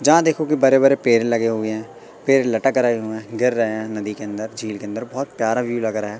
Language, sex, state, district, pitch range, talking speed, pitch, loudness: Hindi, male, Madhya Pradesh, Katni, 110-130 Hz, 260 wpm, 115 Hz, -20 LUFS